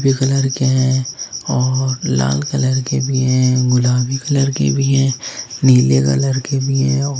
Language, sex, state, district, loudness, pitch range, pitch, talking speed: Hindi, male, Uttar Pradesh, Lucknow, -16 LUFS, 125-135 Hz, 130 Hz, 165 wpm